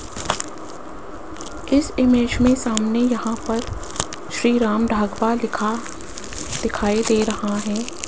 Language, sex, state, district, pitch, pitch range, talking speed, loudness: Hindi, female, Rajasthan, Jaipur, 225 Hz, 215-240 Hz, 105 wpm, -21 LUFS